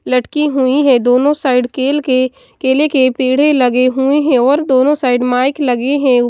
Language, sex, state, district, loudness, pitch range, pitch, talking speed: Hindi, female, Haryana, Jhajjar, -13 LUFS, 250-285 Hz, 260 Hz, 180 wpm